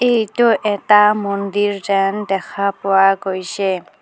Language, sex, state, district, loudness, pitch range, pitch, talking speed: Assamese, female, Assam, Kamrup Metropolitan, -16 LUFS, 195-210 Hz, 200 Hz, 105 wpm